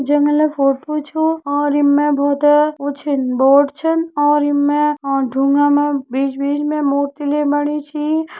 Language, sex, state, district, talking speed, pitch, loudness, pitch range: Hindi, female, Uttarakhand, Uttarkashi, 165 wpm, 290 Hz, -16 LUFS, 280-300 Hz